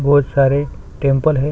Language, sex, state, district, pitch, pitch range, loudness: Hindi, male, Chhattisgarh, Sukma, 140 Hz, 135-145 Hz, -16 LUFS